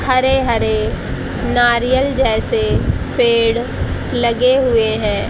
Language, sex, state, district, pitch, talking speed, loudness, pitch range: Hindi, female, Haryana, Jhajjar, 250 Hz, 90 wpm, -15 LUFS, 220-265 Hz